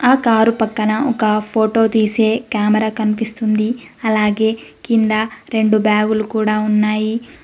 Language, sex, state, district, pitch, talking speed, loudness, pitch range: Telugu, female, Telangana, Mahabubabad, 220 Hz, 115 wpm, -16 LUFS, 215-225 Hz